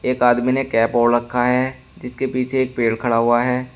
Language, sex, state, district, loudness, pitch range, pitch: Hindi, male, Uttar Pradesh, Shamli, -18 LUFS, 120-130 Hz, 125 Hz